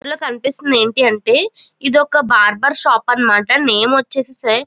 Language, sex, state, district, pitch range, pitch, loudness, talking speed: Telugu, female, Andhra Pradesh, Chittoor, 230-280 Hz, 265 Hz, -13 LUFS, 155 wpm